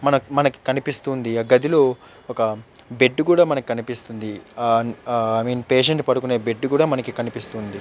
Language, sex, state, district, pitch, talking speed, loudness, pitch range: Telugu, male, Andhra Pradesh, Chittoor, 125 Hz, 140 wpm, -20 LUFS, 115-135 Hz